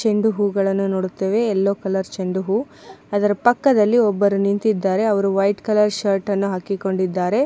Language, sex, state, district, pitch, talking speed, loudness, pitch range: Kannada, female, Karnataka, Mysore, 200 Hz, 130 wpm, -19 LUFS, 195-210 Hz